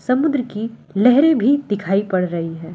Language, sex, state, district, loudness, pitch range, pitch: Hindi, female, Delhi, New Delhi, -18 LUFS, 185-270 Hz, 220 Hz